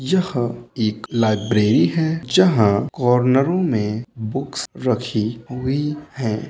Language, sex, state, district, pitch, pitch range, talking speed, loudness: Hindi, male, Uttar Pradesh, Muzaffarnagar, 125 Hz, 110-145 Hz, 90 wpm, -20 LUFS